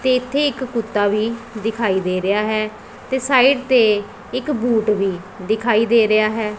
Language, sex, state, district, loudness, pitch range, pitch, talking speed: Punjabi, female, Punjab, Pathankot, -18 LUFS, 210-250 Hz, 225 Hz, 175 wpm